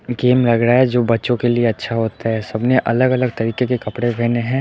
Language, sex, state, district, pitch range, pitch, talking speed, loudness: Hindi, male, Chandigarh, Chandigarh, 115-125 Hz, 120 Hz, 260 wpm, -17 LUFS